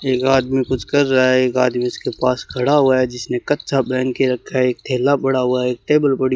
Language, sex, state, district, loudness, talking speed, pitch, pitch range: Hindi, male, Rajasthan, Bikaner, -17 LUFS, 255 wpm, 130 Hz, 125-135 Hz